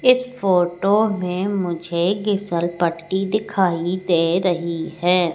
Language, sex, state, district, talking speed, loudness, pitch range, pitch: Hindi, female, Madhya Pradesh, Katni, 110 wpm, -20 LUFS, 170-200 Hz, 180 Hz